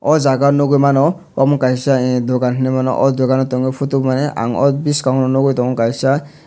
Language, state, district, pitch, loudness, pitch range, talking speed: Kokborok, Tripura, Dhalai, 135 Hz, -15 LUFS, 130-140 Hz, 185 wpm